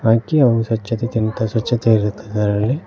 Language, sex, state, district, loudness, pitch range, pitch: Kannada, male, Karnataka, Koppal, -18 LUFS, 110-115 Hz, 115 Hz